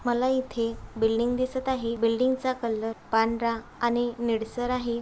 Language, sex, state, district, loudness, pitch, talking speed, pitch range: Marathi, female, Maharashtra, Aurangabad, -27 LUFS, 235 Hz, 130 wpm, 230-250 Hz